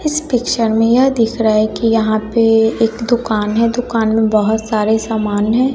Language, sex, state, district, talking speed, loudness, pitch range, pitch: Hindi, female, Bihar, West Champaran, 200 wpm, -14 LUFS, 220-235 Hz, 225 Hz